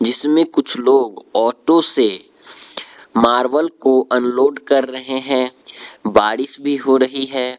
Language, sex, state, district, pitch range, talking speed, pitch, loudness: Hindi, male, Arunachal Pradesh, Lower Dibang Valley, 125-145 Hz, 125 wpm, 130 Hz, -16 LUFS